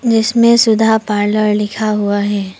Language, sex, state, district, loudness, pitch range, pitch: Hindi, female, Arunachal Pradesh, Papum Pare, -13 LUFS, 205-225 Hz, 215 Hz